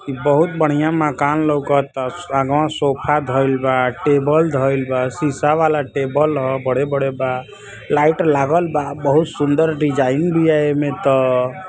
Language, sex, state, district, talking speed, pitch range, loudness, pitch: Bhojpuri, male, Uttar Pradesh, Ghazipur, 145 wpm, 135-150 Hz, -17 LUFS, 145 Hz